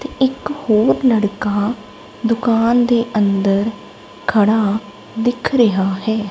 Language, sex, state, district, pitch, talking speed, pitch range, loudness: Punjabi, female, Punjab, Kapurthala, 220 Hz, 95 wpm, 205-240 Hz, -17 LUFS